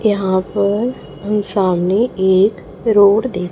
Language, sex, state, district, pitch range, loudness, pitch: Hindi, female, Chhattisgarh, Raipur, 185-210 Hz, -15 LUFS, 200 Hz